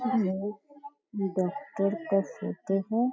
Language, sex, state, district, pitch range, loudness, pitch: Hindi, female, Bihar, Lakhisarai, 195-255 Hz, -30 LUFS, 210 Hz